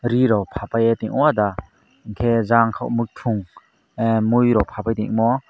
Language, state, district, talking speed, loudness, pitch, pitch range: Kokborok, Tripura, Dhalai, 130 wpm, -20 LUFS, 115 Hz, 110-115 Hz